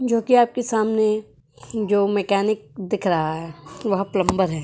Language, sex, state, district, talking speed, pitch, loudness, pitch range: Hindi, female, Uttar Pradesh, Jyotiba Phule Nagar, 140 wpm, 205 Hz, -21 LUFS, 185-220 Hz